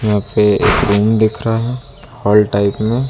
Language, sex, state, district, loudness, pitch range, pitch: Hindi, male, Uttar Pradesh, Lucknow, -14 LUFS, 105-115 Hz, 110 Hz